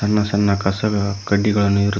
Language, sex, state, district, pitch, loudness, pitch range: Kannada, male, Karnataka, Koppal, 100 Hz, -18 LUFS, 100-105 Hz